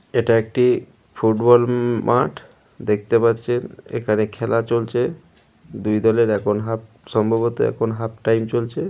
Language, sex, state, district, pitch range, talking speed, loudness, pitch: Bengali, male, West Bengal, Malda, 110-120 Hz, 120 wpm, -20 LUFS, 115 Hz